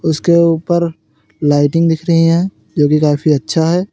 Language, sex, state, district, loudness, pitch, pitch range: Hindi, male, Uttar Pradesh, Lalitpur, -13 LUFS, 165 Hz, 150-170 Hz